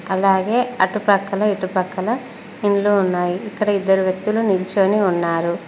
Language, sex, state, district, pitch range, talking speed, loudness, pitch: Telugu, female, Telangana, Mahabubabad, 185-210 Hz, 105 wpm, -19 LUFS, 195 Hz